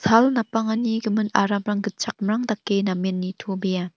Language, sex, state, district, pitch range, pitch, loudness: Garo, female, Meghalaya, North Garo Hills, 195-225 Hz, 210 Hz, -23 LUFS